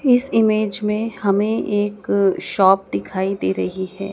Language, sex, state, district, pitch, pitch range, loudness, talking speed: Hindi, female, Madhya Pradesh, Dhar, 205 Hz, 190-215 Hz, -19 LUFS, 145 wpm